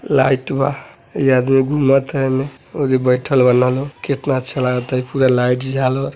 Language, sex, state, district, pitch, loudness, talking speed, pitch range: Bhojpuri, male, Uttar Pradesh, Deoria, 135 Hz, -16 LUFS, 165 wpm, 130-135 Hz